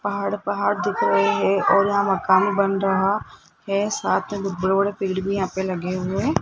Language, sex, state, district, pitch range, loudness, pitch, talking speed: Hindi, male, Rajasthan, Jaipur, 190-200 Hz, -21 LUFS, 195 Hz, 225 wpm